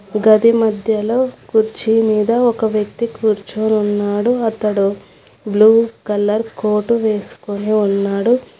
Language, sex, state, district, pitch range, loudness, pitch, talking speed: Telugu, female, Telangana, Hyderabad, 210-225 Hz, -16 LUFS, 215 Hz, 100 wpm